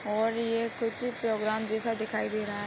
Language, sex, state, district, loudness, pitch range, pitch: Hindi, female, Uttar Pradesh, Hamirpur, -30 LUFS, 215-230 Hz, 225 Hz